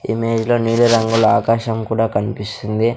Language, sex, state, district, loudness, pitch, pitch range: Telugu, male, Andhra Pradesh, Sri Satya Sai, -17 LUFS, 115 Hz, 110-115 Hz